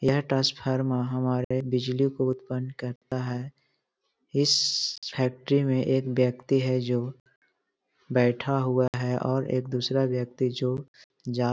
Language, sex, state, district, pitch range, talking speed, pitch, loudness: Hindi, male, Bihar, Jahanabad, 125-135 Hz, 130 wpm, 130 Hz, -27 LUFS